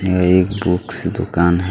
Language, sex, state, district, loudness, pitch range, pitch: Hindi, male, Chhattisgarh, Kabirdham, -17 LUFS, 90-100 Hz, 90 Hz